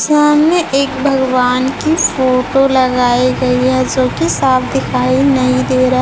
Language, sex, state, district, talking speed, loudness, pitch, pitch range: Hindi, female, Chhattisgarh, Raipur, 140 wpm, -12 LUFS, 255 Hz, 250-270 Hz